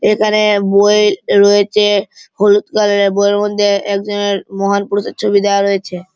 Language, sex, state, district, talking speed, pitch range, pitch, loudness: Bengali, male, West Bengal, Malda, 145 wpm, 200-205 Hz, 205 Hz, -13 LUFS